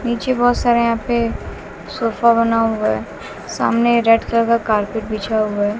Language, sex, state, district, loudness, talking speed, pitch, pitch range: Hindi, female, Bihar, West Champaran, -17 LUFS, 175 wpm, 230 Hz, 215-235 Hz